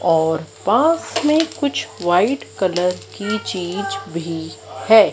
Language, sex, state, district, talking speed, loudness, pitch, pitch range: Hindi, female, Madhya Pradesh, Dhar, 115 wpm, -19 LUFS, 190 Hz, 165-230 Hz